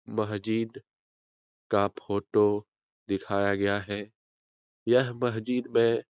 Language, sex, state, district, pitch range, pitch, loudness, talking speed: Hindi, male, Bihar, Lakhisarai, 100-115 Hz, 105 Hz, -28 LUFS, 100 wpm